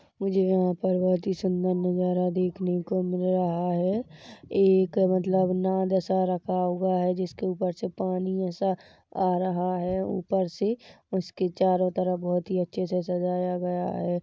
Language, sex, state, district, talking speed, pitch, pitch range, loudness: Hindi, male, Chhattisgarh, Rajnandgaon, 165 wpm, 185 Hz, 180-190 Hz, -27 LUFS